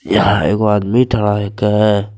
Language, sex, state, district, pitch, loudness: Angika, male, Bihar, Begusarai, 105 Hz, -14 LUFS